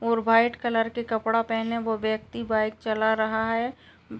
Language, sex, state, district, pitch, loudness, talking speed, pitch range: Hindi, female, Uttar Pradesh, Gorakhpur, 225 Hz, -25 LUFS, 185 wpm, 220-230 Hz